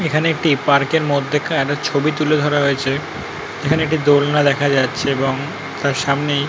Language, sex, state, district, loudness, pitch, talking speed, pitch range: Bengali, male, West Bengal, North 24 Parganas, -17 LUFS, 145 Hz, 165 wpm, 140-155 Hz